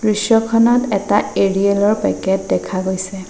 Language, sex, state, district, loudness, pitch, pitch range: Assamese, female, Assam, Sonitpur, -16 LUFS, 200 Hz, 190-220 Hz